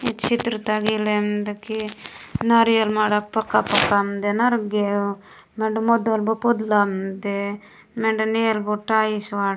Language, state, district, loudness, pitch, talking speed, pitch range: Gondi, Chhattisgarh, Sukma, -21 LUFS, 215 Hz, 140 wpm, 205-220 Hz